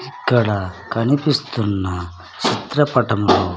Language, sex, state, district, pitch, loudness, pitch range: Telugu, male, Andhra Pradesh, Sri Satya Sai, 105 Hz, -19 LUFS, 95-125 Hz